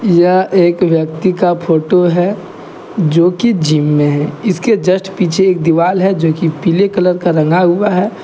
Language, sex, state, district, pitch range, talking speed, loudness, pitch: Hindi, male, Jharkhand, Deoghar, 165-190 Hz, 165 wpm, -12 LUFS, 180 Hz